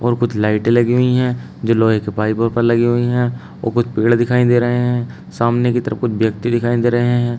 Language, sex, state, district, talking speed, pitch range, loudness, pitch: Hindi, male, Uttar Pradesh, Shamli, 245 wpm, 115-120 Hz, -16 LUFS, 120 Hz